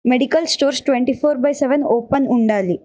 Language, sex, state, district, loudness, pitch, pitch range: Telugu, female, Karnataka, Bellary, -17 LUFS, 275 Hz, 245-285 Hz